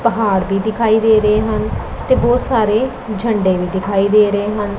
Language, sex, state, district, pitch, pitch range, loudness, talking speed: Punjabi, female, Punjab, Pathankot, 210 Hz, 200-220 Hz, -15 LUFS, 185 wpm